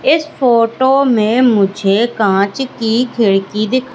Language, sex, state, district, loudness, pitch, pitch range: Hindi, female, Madhya Pradesh, Katni, -13 LUFS, 230 Hz, 210-255 Hz